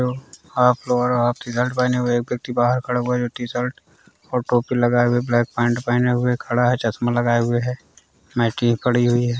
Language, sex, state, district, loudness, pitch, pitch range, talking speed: Hindi, male, Bihar, Gaya, -20 LUFS, 120 Hz, 120-125 Hz, 210 wpm